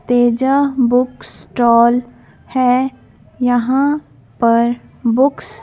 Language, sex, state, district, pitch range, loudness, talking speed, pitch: Hindi, female, Madhya Pradesh, Bhopal, 240-260 Hz, -15 LUFS, 85 wpm, 250 Hz